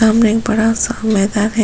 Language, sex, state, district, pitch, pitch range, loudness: Hindi, female, Chhattisgarh, Sukma, 220 Hz, 215-225 Hz, -15 LUFS